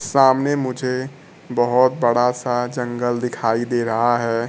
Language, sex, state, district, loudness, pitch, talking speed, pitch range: Hindi, male, Bihar, Kaimur, -19 LUFS, 125 Hz, 135 wpm, 120-130 Hz